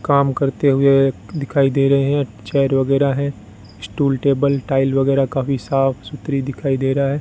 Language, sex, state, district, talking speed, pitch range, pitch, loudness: Hindi, male, Rajasthan, Bikaner, 175 wpm, 135-140 Hz, 135 Hz, -18 LUFS